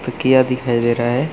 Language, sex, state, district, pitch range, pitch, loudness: Hindi, male, Chhattisgarh, Balrampur, 120-130 Hz, 125 Hz, -16 LUFS